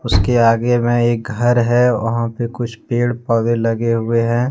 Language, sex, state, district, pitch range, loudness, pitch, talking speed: Hindi, male, Jharkhand, Deoghar, 115-120 Hz, -16 LUFS, 120 Hz, 185 wpm